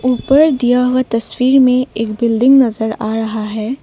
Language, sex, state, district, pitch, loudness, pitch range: Hindi, female, Assam, Kamrup Metropolitan, 245 Hz, -13 LUFS, 225-255 Hz